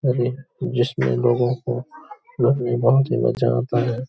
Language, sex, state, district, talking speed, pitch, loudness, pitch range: Hindi, male, Uttar Pradesh, Hamirpur, 190 wpm, 120 Hz, -21 LUFS, 120-130 Hz